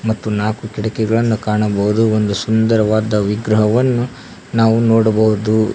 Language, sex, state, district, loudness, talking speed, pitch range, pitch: Kannada, male, Karnataka, Koppal, -16 LUFS, 95 wpm, 105-115 Hz, 110 Hz